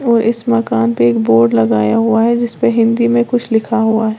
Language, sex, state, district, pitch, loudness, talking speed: Hindi, female, Uttar Pradesh, Lalitpur, 225 Hz, -13 LUFS, 245 wpm